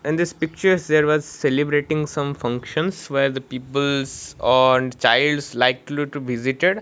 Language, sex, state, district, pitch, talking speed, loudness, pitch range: English, male, Odisha, Malkangiri, 145 Hz, 140 wpm, -20 LUFS, 130-155 Hz